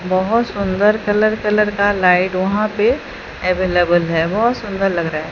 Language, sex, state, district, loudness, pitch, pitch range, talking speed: Hindi, female, Odisha, Sambalpur, -16 LUFS, 195 Hz, 185-210 Hz, 170 wpm